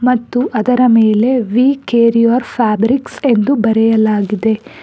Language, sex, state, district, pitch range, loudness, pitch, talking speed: Kannada, female, Karnataka, Bangalore, 220-250 Hz, -13 LUFS, 235 Hz, 110 wpm